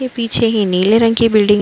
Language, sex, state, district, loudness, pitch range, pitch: Hindi, female, Uttar Pradesh, Budaun, -13 LUFS, 210-230 Hz, 225 Hz